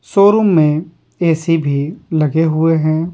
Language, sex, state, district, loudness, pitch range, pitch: Hindi, male, Bihar, Patna, -14 LUFS, 155-170 Hz, 160 Hz